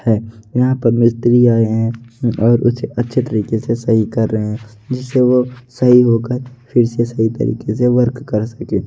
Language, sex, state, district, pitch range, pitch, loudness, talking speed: Hindi, male, Odisha, Nuapada, 110-125 Hz, 120 Hz, -15 LUFS, 185 wpm